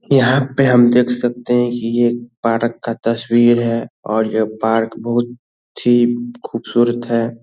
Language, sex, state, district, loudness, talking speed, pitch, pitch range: Hindi, male, Bihar, Saran, -16 LUFS, 170 wpm, 120 Hz, 115-120 Hz